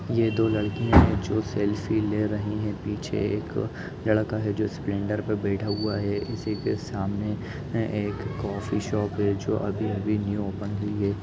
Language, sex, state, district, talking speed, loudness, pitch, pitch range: Hindi, male, Chhattisgarh, Rajnandgaon, 175 wpm, -27 LUFS, 105 Hz, 100-110 Hz